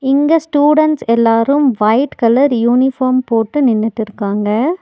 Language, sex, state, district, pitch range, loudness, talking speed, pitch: Tamil, female, Tamil Nadu, Nilgiris, 225-285 Hz, -13 LUFS, 100 wpm, 255 Hz